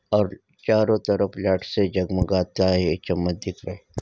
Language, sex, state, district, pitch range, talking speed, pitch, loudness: Hindi, female, Maharashtra, Nagpur, 90-100 Hz, 150 wpm, 95 Hz, -23 LUFS